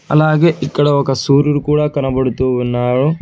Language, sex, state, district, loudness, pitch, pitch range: Telugu, male, Telangana, Hyderabad, -14 LUFS, 140 Hz, 130-150 Hz